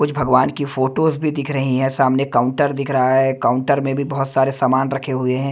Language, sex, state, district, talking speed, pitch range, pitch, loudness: Hindi, male, Himachal Pradesh, Shimla, 240 wpm, 130-140 Hz, 135 Hz, -18 LUFS